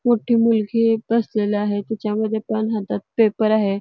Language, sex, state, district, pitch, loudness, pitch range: Marathi, female, Karnataka, Belgaum, 220 Hz, -20 LUFS, 210-230 Hz